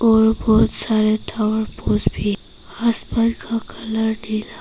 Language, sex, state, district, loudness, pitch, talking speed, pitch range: Hindi, female, Arunachal Pradesh, Papum Pare, -20 LUFS, 220 Hz, 130 wpm, 215-225 Hz